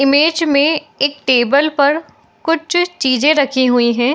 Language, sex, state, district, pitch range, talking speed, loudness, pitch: Hindi, female, Bihar, Madhepura, 265-315 Hz, 145 wpm, -14 LUFS, 285 Hz